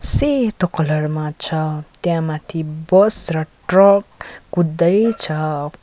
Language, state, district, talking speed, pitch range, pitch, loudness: Nepali, West Bengal, Darjeeling, 115 wpm, 155-190 Hz, 160 Hz, -17 LUFS